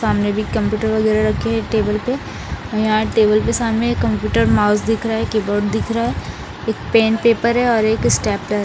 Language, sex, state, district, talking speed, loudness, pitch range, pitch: Hindi, female, Bihar, Patna, 210 wpm, -17 LUFS, 210-225 Hz, 220 Hz